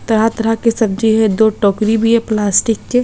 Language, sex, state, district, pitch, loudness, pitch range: Hindi, female, Maharashtra, Chandrapur, 220 Hz, -14 LUFS, 215-225 Hz